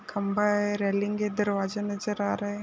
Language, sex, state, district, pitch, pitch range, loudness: Hindi, female, Rajasthan, Nagaur, 205 Hz, 205-210 Hz, -28 LUFS